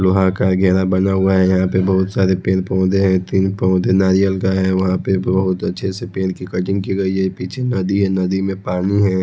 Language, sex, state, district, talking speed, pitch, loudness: Hindi, male, Odisha, Khordha, 235 wpm, 95 Hz, -17 LUFS